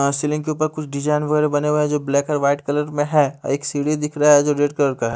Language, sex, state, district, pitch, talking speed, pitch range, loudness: Hindi, male, Haryana, Rohtak, 150 Hz, 325 wpm, 140-150 Hz, -19 LUFS